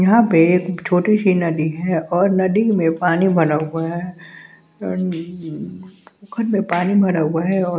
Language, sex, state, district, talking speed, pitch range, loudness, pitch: Hindi, male, Bihar, West Champaran, 170 wpm, 165-190 Hz, -18 LUFS, 180 Hz